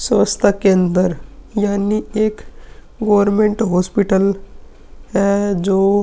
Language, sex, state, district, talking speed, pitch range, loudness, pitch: Hindi, male, Uttar Pradesh, Hamirpur, 90 wpm, 185-205 Hz, -16 LUFS, 200 Hz